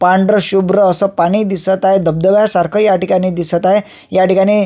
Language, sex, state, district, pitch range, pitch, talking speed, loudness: Marathi, male, Maharashtra, Sindhudurg, 185-205 Hz, 190 Hz, 180 wpm, -12 LUFS